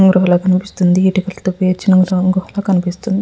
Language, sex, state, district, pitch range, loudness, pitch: Telugu, female, Andhra Pradesh, Visakhapatnam, 185-190 Hz, -14 LUFS, 185 Hz